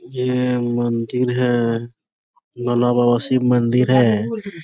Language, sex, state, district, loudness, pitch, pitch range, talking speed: Hindi, male, Jharkhand, Sahebganj, -18 LUFS, 120 Hz, 120-125 Hz, 105 wpm